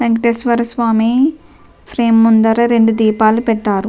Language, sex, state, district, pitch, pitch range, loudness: Telugu, female, Telangana, Nalgonda, 230 Hz, 225-235 Hz, -13 LUFS